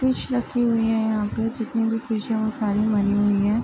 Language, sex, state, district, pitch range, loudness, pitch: Hindi, female, Bihar, Bhagalpur, 215-230 Hz, -23 LUFS, 225 Hz